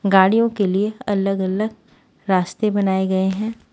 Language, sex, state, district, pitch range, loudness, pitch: Hindi, female, Haryana, Rohtak, 190-220 Hz, -19 LUFS, 200 Hz